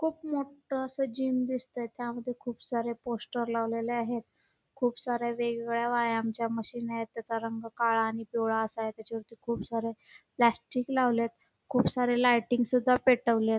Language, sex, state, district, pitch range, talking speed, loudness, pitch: Marathi, female, Karnataka, Belgaum, 230-250 Hz, 150 wpm, -30 LUFS, 235 Hz